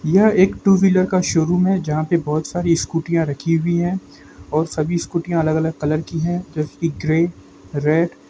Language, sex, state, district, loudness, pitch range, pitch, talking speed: Hindi, male, Jharkhand, Jamtara, -19 LUFS, 155-175 Hz, 165 Hz, 195 wpm